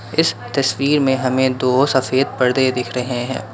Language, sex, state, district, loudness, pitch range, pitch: Hindi, male, Assam, Kamrup Metropolitan, -17 LUFS, 125-135 Hz, 130 Hz